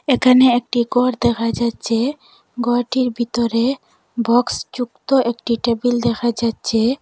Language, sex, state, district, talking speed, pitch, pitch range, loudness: Bengali, female, Assam, Hailakandi, 105 wpm, 240 Hz, 235-250 Hz, -18 LUFS